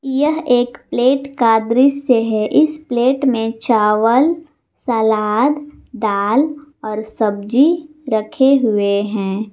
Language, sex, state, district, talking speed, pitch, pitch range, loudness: Hindi, female, Jharkhand, Garhwa, 105 wpm, 245 Hz, 220-280 Hz, -16 LUFS